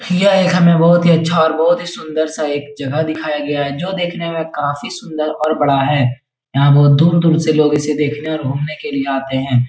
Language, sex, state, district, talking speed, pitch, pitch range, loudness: Hindi, male, Uttar Pradesh, Etah, 230 wpm, 155 Hz, 145-165 Hz, -15 LUFS